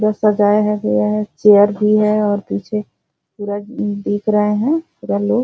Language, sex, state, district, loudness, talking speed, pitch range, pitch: Hindi, female, Bihar, Jahanabad, -16 LUFS, 175 wpm, 205-210 Hz, 210 Hz